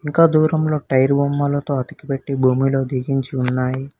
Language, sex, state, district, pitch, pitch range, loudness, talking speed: Telugu, male, Telangana, Hyderabad, 135 Hz, 130-145 Hz, -19 LUFS, 120 wpm